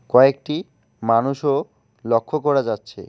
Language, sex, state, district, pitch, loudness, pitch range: Bengali, male, West Bengal, Alipurduar, 135 Hz, -20 LUFS, 115-145 Hz